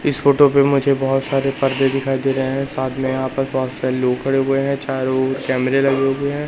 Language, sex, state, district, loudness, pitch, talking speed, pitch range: Hindi, male, Madhya Pradesh, Katni, -18 LUFS, 135 Hz, 250 wpm, 130-135 Hz